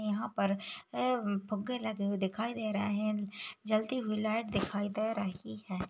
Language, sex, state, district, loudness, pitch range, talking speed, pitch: Hindi, female, Chhattisgarh, Raigarh, -35 LUFS, 200-220 Hz, 175 wpm, 210 Hz